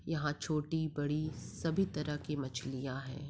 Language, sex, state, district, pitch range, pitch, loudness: Hindi, female, Bihar, Madhepura, 140-155 Hz, 150 Hz, -37 LUFS